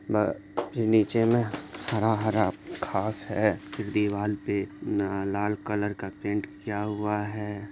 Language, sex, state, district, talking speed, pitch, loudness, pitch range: Maithili, male, Bihar, Supaul, 115 wpm, 105 Hz, -28 LUFS, 100-110 Hz